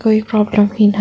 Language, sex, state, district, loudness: Hindi, female, Chhattisgarh, Kabirdham, -14 LUFS